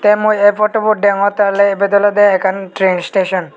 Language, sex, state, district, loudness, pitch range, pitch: Chakma, male, Tripura, Unakoti, -13 LUFS, 190-205 Hz, 200 Hz